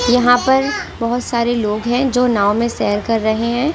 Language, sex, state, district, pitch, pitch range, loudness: Hindi, female, Delhi, New Delhi, 240 Hz, 225-245 Hz, -16 LUFS